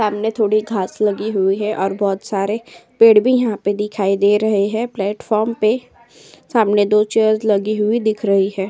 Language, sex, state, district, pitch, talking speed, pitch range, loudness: Hindi, female, Uttar Pradesh, Jyotiba Phule Nagar, 210 Hz, 185 wpm, 200-220 Hz, -17 LUFS